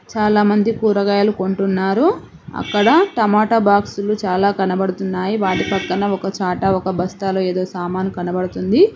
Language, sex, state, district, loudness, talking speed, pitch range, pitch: Telugu, female, Telangana, Mahabubabad, -17 LUFS, 115 wpm, 190-210 Hz, 195 Hz